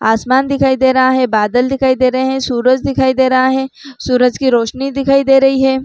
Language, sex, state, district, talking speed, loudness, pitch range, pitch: Chhattisgarhi, female, Chhattisgarh, Raigarh, 235 wpm, -13 LUFS, 255-270 Hz, 260 Hz